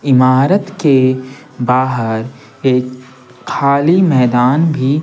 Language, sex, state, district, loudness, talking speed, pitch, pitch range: Hindi, male, Bihar, Patna, -13 LUFS, 95 wpm, 130 Hz, 125-145 Hz